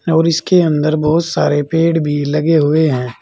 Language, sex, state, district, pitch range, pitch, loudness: Hindi, male, Uttar Pradesh, Saharanpur, 150-165 Hz, 155 Hz, -14 LUFS